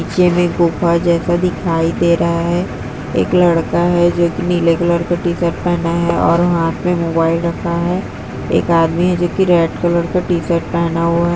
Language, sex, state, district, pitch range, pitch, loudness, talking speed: Hindi, female, Bihar, Jahanabad, 170-175 Hz, 170 Hz, -15 LUFS, 185 wpm